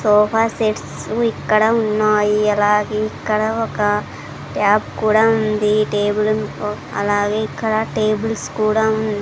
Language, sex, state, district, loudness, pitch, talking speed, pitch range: Telugu, female, Andhra Pradesh, Sri Satya Sai, -18 LUFS, 215 Hz, 105 wpm, 210-220 Hz